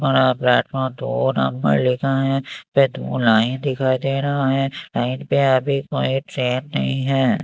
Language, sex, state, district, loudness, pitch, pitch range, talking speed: Hindi, male, Maharashtra, Mumbai Suburban, -20 LUFS, 135 Hz, 125-135 Hz, 160 wpm